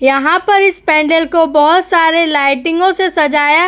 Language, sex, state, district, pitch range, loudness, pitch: Hindi, female, Uttar Pradesh, Etah, 300-360 Hz, -11 LUFS, 330 Hz